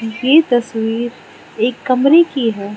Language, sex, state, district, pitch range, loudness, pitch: Hindi, female, Arunachal Pradesh, Lower Dibang Valley, 225-265 Hz, -14 LUFS, 240 Hz